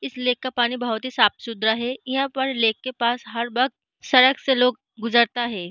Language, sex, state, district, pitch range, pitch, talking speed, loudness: Hindi, female, Uttar Pradesh, Jalaun, 230-255 Hz, 245 Hz, 220 wpm, -21 LUFS